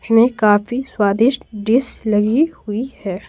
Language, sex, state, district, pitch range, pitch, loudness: Hindi, female, Bihar, Patna, 210-250 Hz, 225 Hz, -17 LUFS